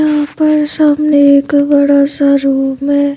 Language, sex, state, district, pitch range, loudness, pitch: Hindi, female, Madhya Pradesh, Bhopal, 280-300 Hz, -11 LUFS, 285 Hz